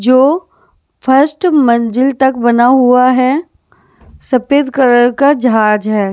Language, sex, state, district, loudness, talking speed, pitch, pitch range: Hindi, female, Bihar, West Champaran, -11 LUFS, 120 wpm, 255 Hz, 240-275 Hz